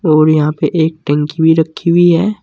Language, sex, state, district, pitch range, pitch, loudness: Hindi, male, Uttar Pradesh, Saharanpur, 155-170 Hz, 160 Hz, -12 LUFS